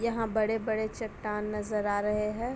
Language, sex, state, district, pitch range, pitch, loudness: Hindi, female, Uttar Pradesh, Etah, 210-225 Hz, 215 Hz, -31 LUFS